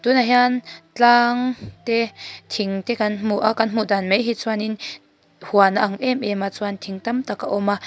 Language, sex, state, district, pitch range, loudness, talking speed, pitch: Mizo, female, Mizoram, Aizawl, 200-240 Hz, -20 LUFS, 220 wpm, 215 Hz